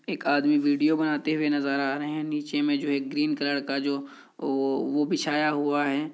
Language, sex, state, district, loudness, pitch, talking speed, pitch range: Hindi, male, Bihar, Kishanganj, -26 LUFS, 145 Hz, 215 wpm, 140-150 Hz